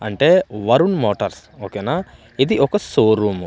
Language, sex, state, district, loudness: Telugu, male, Andhra Pradesh, Manyam, -17 LUFS